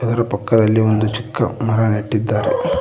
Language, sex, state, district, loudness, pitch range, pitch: Kannada, male, Karnataka, Koppal, -17 LUFS, 110-115 Hz, 110 Hz